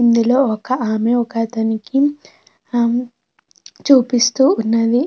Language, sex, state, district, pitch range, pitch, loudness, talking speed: Telugu, female, Andhra Pradesh, Krishna, 230-255 Hz, 235 Hz, -16 LUFS, 95 wpm